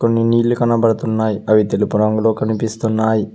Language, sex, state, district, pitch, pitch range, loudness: Telugu, male, Telangana, Mahabubabad, 110 Hz, 110-115 Hz, -16 LUFS